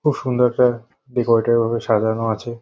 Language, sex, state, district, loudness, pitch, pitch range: Bengali, male, West Bengal, North 24 Parganas, -19 LUFS, 120 Hz, 115-125 Hz